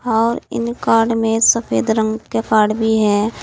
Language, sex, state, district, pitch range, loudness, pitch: Hindi, female, Uttar Pradesh, Saharanpur, 220-230 Hz, -16 LUFS, 225 Hz